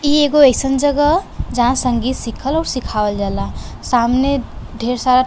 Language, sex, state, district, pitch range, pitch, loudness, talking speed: Bhojpuri, female, Uttar Pradesh, Varanasi, 240-285 Hz, 255 Hz, -16 LUFS, 170 wpm